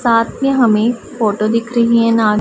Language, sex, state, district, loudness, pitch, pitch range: Hindi, female, Punjab, Pathankot, -14 LUFS, 230 Hz, 220-235 Hz